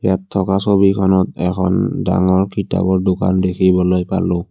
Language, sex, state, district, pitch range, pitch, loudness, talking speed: Assamese, male, Assam, Kamrup Metropolitan, 90-95 Hz, 95 Hz, -16 LUFS, 120 wpm